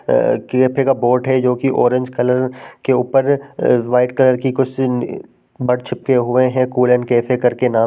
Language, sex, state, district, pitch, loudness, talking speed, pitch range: Hindi, male, Bihar, Sitamarhi, 125 Hz, -16 LUFS, 185 wpm, 125-130 Hz